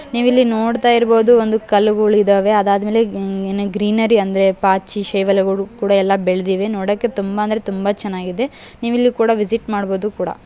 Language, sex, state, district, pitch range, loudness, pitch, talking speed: Kannada, female, Karnataka, Gulbarga, 195-225 Hz, -16 LUFS, 205 Hz, 145 wpm